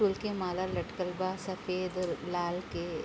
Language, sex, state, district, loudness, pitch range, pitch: Bhojpuri, female, Uttar Pradesh, Gorakhpur, -34 LUFS, 175-185 Hz, 185 Hz